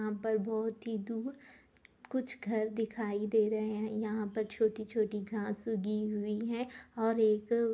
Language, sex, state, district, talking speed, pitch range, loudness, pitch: Hindi, female, Jharkhand, Sahebganj, 165 wpm, 215-225 Hz, -35 LUFS, 220 Hz